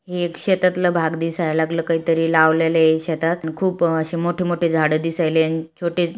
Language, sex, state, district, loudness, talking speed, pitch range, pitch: Marathi, female, Maharashtra, Aurangabad, -19 LUFS, 195 wpm, 160-175 Hz, 165 Hz